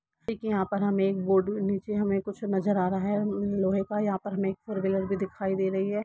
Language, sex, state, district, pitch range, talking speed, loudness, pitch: Hindi, female, Jharkhand, Jamtara, 195-205 Hz, 245 wpm, -28 LUFS, 195 Hz